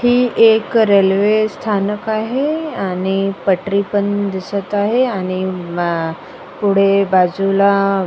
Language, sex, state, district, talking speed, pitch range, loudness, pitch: Marathi, female, Maharashtra, Sindhudurg, 110 wpm, 190-215 Hz, -16 LUFS, 200 Hz